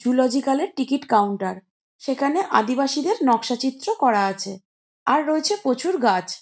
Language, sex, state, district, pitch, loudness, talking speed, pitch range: Bengali, female, West Bengal, Jhargram, 260 Hz, -22 LUFS, 120 wpm, 205-285 Hz